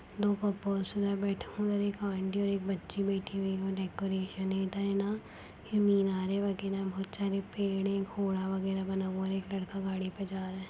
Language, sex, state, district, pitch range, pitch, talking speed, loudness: Hindi, female, Chhattisgarh, Sarguja, 190-200 Hz, 195 Hz, 175 wpm, -34 LUFS